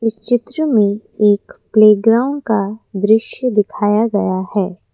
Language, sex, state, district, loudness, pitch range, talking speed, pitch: Hindi, female, Assam, Kamrup Metropolitan, -15 LUFS, 205-225 Hz, 120 wpm, 215 Hz